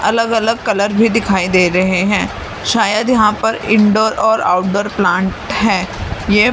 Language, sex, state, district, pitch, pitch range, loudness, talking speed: Hindi, female, Maharashtra, Mumbai Suburban, 210 Hz, 195-225 Hz, -14 LUFS, 145 wpm